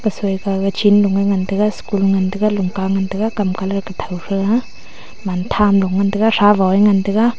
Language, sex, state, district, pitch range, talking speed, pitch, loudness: Wancho, female, Arunachal Pradesh, Longding, 195-210 Hz, 220 wpm, 195 Hz, -16 LUFS